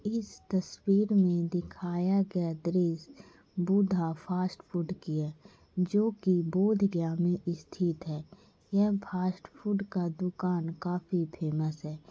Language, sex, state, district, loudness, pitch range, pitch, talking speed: Hindi, female, Bihar, Gaya, -31 LUFS, 170-195 Hz, 180 Hz, 125 wpm